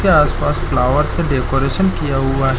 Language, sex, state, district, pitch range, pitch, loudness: Hindi, male, Chhattisgarh, Korba, 135-145 Hz, 135 Hz, -16 LUFS